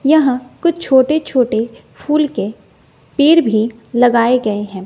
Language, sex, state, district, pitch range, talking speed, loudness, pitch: Hindi, female, Bihar, West Champaran, 225-300 Hz, 135 wpm, -14 LUFS, 255 Hz